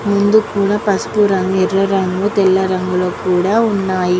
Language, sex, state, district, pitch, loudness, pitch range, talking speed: Telugu, female, Andhra Pradesh, Guntur, 195 Hz, -15 LUFS, 185-205 Hz, 155 wpm